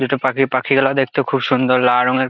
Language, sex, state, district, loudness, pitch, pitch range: Bengali, male, West Bengal, Jalpaiguri, -16 LUFS, 130 Hz, 130-135 Hz